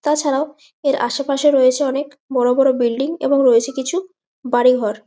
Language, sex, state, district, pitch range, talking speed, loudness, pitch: Bengali, female, West Bengal, Malda, 250-285 Hz, 175 wpm, -17 LUFS, 275 Hz